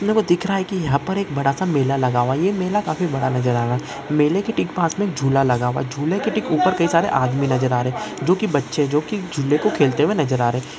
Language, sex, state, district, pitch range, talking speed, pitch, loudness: Hindi, male, Chhattisgarh, Korba, 135-185 Hz, 295 wpm, 150 Hz, -20 LUFS